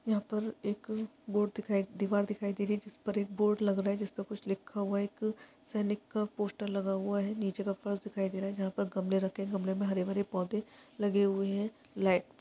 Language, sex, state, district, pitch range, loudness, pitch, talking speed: Hindi, female, Chhattisgarh, Balrampur, 195-210 Hz, -34 LUFS, 205 Hz, 235 wpm